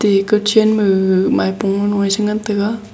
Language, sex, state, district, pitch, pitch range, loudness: Wancho, female, Arunachal Pradesh, Longding, 205 Hz, 195-210 Hz, -15 LUFS